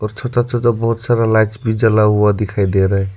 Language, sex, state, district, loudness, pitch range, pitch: Hindi, male, Arunachal Pradesh, Lower Dibang Valley, -15 LUFS, 105-115 Hz, 110 Hz